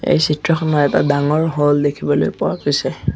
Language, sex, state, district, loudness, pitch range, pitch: Assamese, male, Assam, Sonitpur, -17 LUFS, 145-155 Hz, 145 Hz